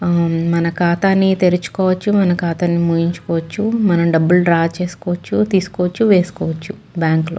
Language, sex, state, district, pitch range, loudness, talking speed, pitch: Telugu, female, Andhra Pradesh, Guntur, 170-190 Hz, -16 LUFS, 120 wpm, 175 Hz